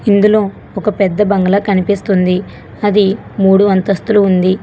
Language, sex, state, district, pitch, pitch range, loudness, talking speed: Telugu, female, Telangana, Hyderabad, 200 Hz, 190-205 Hz, -13 LUFS, 115 wpm